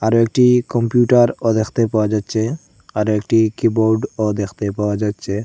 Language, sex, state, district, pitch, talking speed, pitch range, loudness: Bengali, male, Assam, Hailakandi, 110 Hz, 130 wpm, 105-115 Hz, -17 LUFS